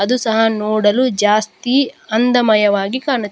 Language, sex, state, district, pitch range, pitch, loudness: Kannada, female, Karnataka, Dakshina Kannada, 210-250 Hz, 220 Hz, -15 LUFS